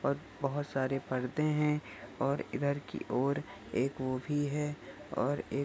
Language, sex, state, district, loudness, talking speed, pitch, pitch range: Hindi, male, Bihar, Saharsa, -34 LUFS, 150 wpm, 140 Hz, 130-145 Hz